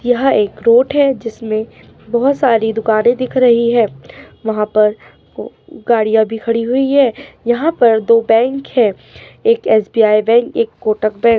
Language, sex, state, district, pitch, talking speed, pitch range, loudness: Hindi, female, Uttar Pradesh, Ghazipur, 230 Hz, 160 wpm, 220-245 Hz, -14 LUFS